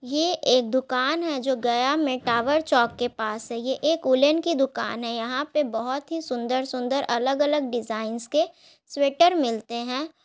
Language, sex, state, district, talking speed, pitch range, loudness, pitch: Hindi, female, Bihar, Gaya, 175 wpm, 240-300 Hz, -24 LUFS, 260 Hz